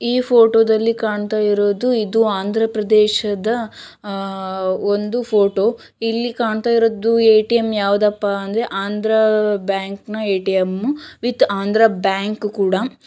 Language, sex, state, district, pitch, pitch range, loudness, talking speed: Kannada, female, Karnataka, Shimoga, 215 Hz, 200-225 Hz, -17 LUFS, 125 wpm